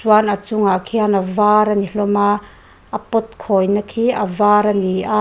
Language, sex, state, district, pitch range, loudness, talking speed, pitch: Mizo, female, Mizoram, Aizawl, 200-215 Hz, -16 LUFS, 220 wpm, 210 Hz